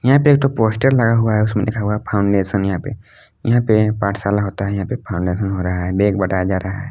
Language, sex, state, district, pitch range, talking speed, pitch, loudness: Hindi, male, Jharkhand, Palamu, 95-115 Hz, 270 wpm, 105 Hz, -17 LUFS